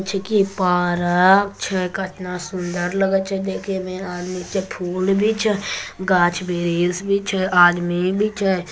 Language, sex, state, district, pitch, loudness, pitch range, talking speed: Hindi, female, Bihar, Begusarai, 185 Hz, -20 LUFS, 180-195 Hz, 145 wpm